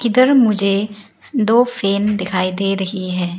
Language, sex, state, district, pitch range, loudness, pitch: Hindi, female, Arunachal Pradesh, Lower Dibang Valley, 190-230 Hz, -16 LUFS, 200 Hz